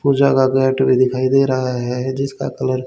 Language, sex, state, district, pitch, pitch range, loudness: Hindi, male, Haryana, Charkhi Dadri, 130 Hz, 130-135 Hz, -17 LUFS